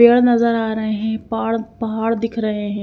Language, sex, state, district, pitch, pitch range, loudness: Hindi, female, Haryana, Jhajjar, 225 Hz, 220-230 Hz, -19 LUFS